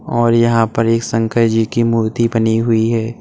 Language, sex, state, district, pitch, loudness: Hindi, male, Uttar Pradesh, Saharanpur, 115 Hz, -15 LUFS